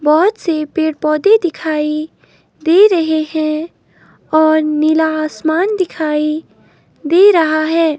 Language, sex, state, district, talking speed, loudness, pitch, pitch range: Hindi, female, Himachal Pradesh, Shimla, 115 wpm, -14 LUFS, 315 Hz, 305-335 Hz